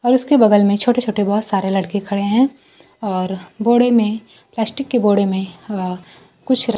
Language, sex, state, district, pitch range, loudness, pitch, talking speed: Hindi, female, Bihar, Kaimur, 195-240 Hz, -17 LUFS, 210 Hz, 175 wpm